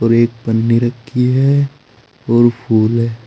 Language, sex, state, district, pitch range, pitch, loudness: Hindi, male, Uttar Pradesh, Saharanpur, 115-125 Hz, 120 Hz, -14 LUFS